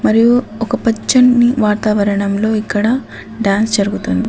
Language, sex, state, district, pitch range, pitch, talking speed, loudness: Telugu, female, Telangana, Adilabad, 210-240 Hz, 220 Hz, 100 wpm, -14 LUFS